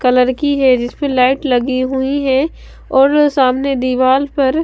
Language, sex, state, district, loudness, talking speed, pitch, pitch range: Hindi, female, Bihar, West Champaran, -14 LUFS, 155 wpm, 265 Hz, 255-280 Hz